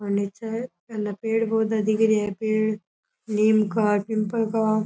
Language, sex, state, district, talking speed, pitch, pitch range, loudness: Rajasthani, male, Rajasthan, Churu, 160 wpm, 215 Hz, 210-225 Hz, -24 LUFS